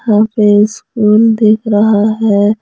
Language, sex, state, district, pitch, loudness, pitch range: Hindi, female, Jharkhand, Garhwa, 215 Hz, -10 LUFS, 210-220 Hz